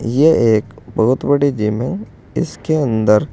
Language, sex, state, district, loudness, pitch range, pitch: Hindi, male, Uttar Pradesh, Saharanpur, -16 LUFS, 110-145 Hz, 120 Hz